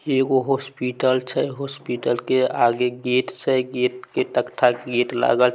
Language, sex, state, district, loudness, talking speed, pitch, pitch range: Maithili, male, Bihar, Samastipur, -22 LUFS, 175 wpm, 125 Hz, 125-130 Hz